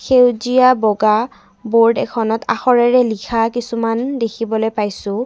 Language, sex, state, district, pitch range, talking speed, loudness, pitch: Assamese, female, Assam, Kamrup Metropolitan, 220-245 Hz, 105 wpm, -16 LUFS, 230 Hz